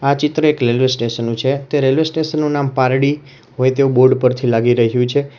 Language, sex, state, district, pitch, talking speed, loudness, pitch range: Gujarati, male, Gujarat, Valsad, 135 Hz, 225 wpm, -15 LUFS, 125-145 Hz